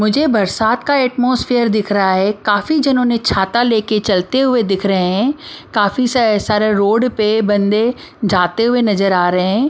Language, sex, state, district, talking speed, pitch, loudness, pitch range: Hindi, female, Maharashtra, Mumbai Suburban, 180 wpm, 215 Hz, -15 LUFS, 200-245 Hz